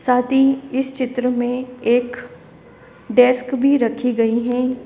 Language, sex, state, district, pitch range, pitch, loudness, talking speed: Hindi, female, Uttar Pradesh, Lalitpur, 245-260 Hz, 250 Hz, -18 LUFS, 135 wpm